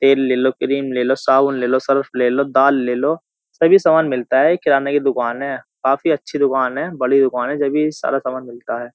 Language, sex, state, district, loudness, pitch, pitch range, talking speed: Hindi, male, Uttar Pradesh, Jyotiba Phule Nagar, -17 LUFS, 135 Hz, 130-140 Hz, 240 wpm